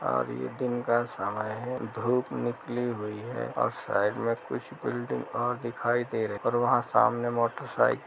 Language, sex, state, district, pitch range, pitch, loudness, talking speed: Hindi, male, Chhattisgarh, Kabirdham, 105-120 Hz, 120 Hz, -29 LUFS, 155 wpm